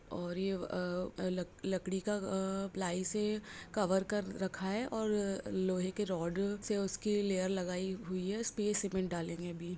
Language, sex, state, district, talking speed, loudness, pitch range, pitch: Hindi, female, Jharkhand, Sahebganj, 165 wpm, -37 LUFS, 185-205 Hz, 190 Hz